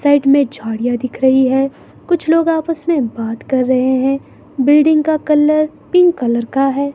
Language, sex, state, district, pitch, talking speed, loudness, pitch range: Hindi, female, Himachal Pradesh, Shimla, 275 Hz, 180 wpm, -14 LUFS, 255-310 Hz